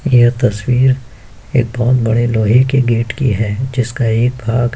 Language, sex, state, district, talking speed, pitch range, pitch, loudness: Hindi, male, Uttar Pradesh, Jyotiba Phule Nagar, 175 wpm, 115-125 Hz, 120 Hz, -14 LUFS